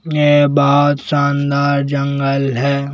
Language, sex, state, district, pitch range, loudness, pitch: Hindi, male, Madhya Pradesh, Bhopal, 140-145 Hz, -14 LUFS, 140 Hz